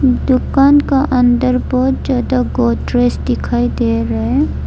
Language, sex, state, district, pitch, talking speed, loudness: Hindi, female, Arunachal Pradesh, Lower Dibang Valley, 250 Hz, 140 wpm, -14 LUFS